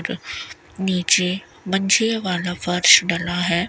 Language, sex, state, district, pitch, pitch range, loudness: Hindi, female, Rajasthan, Bikaner, 180 Hz, 175-190 Hz, -18 LUFS